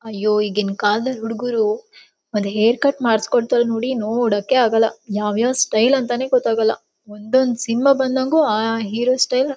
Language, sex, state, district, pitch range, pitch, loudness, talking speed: Kannada, female, Karnataka, Shimoga, 215-260 Hz, 235 Hz, -18 LUFS, 145 wpm